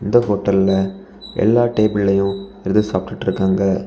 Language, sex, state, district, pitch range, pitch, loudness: Tamil, male, Tamil Nadu, Kanyakumari, 95-105 Hz, 100 Hz, -18 LUFS